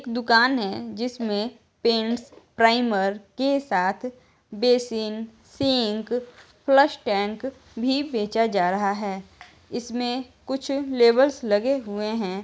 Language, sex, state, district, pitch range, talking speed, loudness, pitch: Hindi, female, Uttar Pradesh, Jyotiba Phule Nagar, 210-250 Hz, 105 wpm, -23 LUFS, 230 Hz